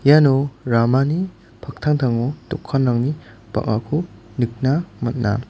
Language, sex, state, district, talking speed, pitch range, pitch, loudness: Garo, male, Meghalaya, West Garo Hills, 75 wpm, 120-150 Hz, 130 Hz, -20 LUFS